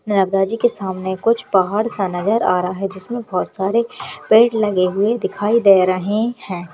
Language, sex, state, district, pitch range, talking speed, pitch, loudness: Hindi, female, Uttarakhand, Uttarkashi, 190-225 Hz, 180 wpm, 200 Hz, -17 LUFS